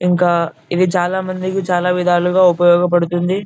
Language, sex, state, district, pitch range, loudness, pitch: Telugu, male, Telangana, Karimnagar, 175-185 Hz, -15 LUFS, 180 Hz